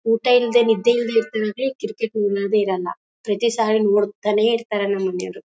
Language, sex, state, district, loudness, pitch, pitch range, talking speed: Kannada, female, Karnataka, Bellary, -20 LUFS, 215 Hz, 205-230 Hz, 155 wpm